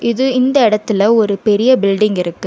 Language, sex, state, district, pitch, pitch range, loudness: Tamil, female, Karnataka, Bangalore, 215 Hz, 200-250 Hz, -13 LUFS